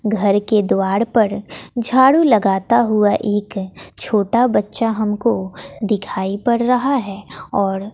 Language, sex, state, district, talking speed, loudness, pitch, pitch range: Hindi, female, Bihar, West Champaran, 120 wpm, -17 LUFS, 215 Hz, 200-235 Hz